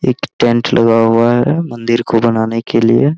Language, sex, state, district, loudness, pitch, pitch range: Hindi, male, Bihar, Araria, -13 LUFS, 115 Hz, 115-120 Hz